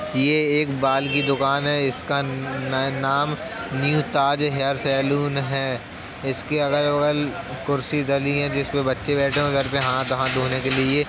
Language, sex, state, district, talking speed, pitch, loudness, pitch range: Hindi, male, Uttar Pradesh, Jalaun, 185 wpm, 140 Hz, -22 LUFS, 135-145 Hz